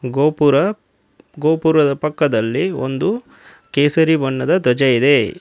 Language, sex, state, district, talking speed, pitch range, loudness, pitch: Kannada, male, Karnataka, Koppal, 90 wpm, 135-160 Hz, -16 LUFS, 145 Hz